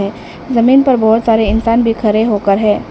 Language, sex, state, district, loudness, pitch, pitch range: Hindi, female, Arunachal Pradesh, Papum Pare, -12 LUFS, 225 Hz, 210-230 Hz